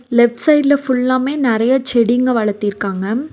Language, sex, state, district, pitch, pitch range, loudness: Tamil, female, Tamil Nadu, Nilgiris, 250 Hz, 230-265 Hz, -15 LUFS